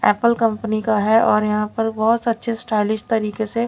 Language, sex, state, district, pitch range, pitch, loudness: Hindi, female, Bihar, Patna, 215-230 Hz, 220 Hz, -19 LUFS